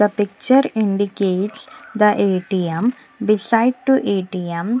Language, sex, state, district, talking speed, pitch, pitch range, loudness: English, female, Punjab, Pathankot, 100 wpm, 210 Hz, 195-235 Hz, -18 LUFS